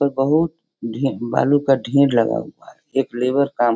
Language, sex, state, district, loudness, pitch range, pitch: Hindi, female, Bihar, Sitamarhi, -19 LUFS, 120-140 Hz, 135 Hz